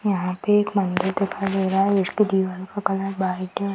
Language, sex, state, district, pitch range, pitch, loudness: Hindi, female, Bihar, Madhepura, 190-200 Hz, 195 Hz, -22 LUFS